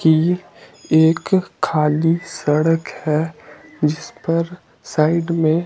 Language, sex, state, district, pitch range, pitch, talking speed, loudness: Hindi, male, Himachal Pradesh, Shimla, 155-170 Hz, 160 Hz, 95 wpm, -19 LUFS